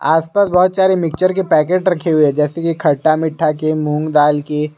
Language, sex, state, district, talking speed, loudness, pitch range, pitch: Hindi, male, Jharkhand, Garhwa, 215 wpm, -15 LUFS, 150-180 Hz, 160 Hz